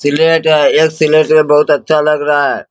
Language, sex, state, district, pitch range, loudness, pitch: Hindi, male, Bihar, Bhagalpur, 150-155 Hz, -10 LUFS, 155 Hz